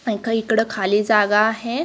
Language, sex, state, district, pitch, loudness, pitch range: Marathi, female, Karnataka, Belgaum, 220 Hz, -19 LUFS, 210-225 Hz